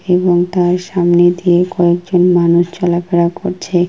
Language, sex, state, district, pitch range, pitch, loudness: Bengali, female, West Bengal, Kolkata, 175-180 Hz, 175 Hz, -13 LUFS